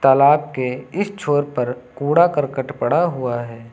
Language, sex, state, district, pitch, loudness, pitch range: Hindi, male, Uttar Pradesh, Lucknow, 140 Hz, -19 LUFS, 125-150 Hz